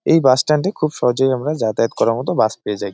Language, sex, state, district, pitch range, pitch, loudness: Bengali, male, West Bengal, Jalpaiguri, 120-155 Hz, 135 Hz, -17 LUFS